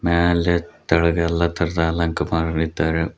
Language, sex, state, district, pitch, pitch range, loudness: Kannada, male, Karnataka, Koppal, 85 Hz, 80-85 Hz, -20 LUFS